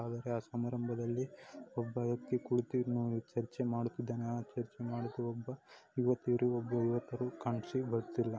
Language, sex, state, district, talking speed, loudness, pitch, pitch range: Kannada, male, Karnataka, Dakshina Kannada, 100 wpm, -38 LUFS, 120 Hz, 120-125 Hz